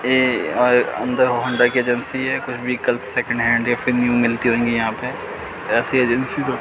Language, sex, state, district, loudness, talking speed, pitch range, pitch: Hindi, male, Chandigarh, Chandigarh, -19 LUFS, 190 wpm, 120-130 Hz, 125 Hz